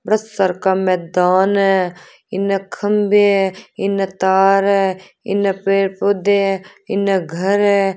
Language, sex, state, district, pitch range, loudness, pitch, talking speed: Marwari, female, Rajasthan, Churu, 190-200 Hz, -16 LUFS, 195 Hz, 130 wpm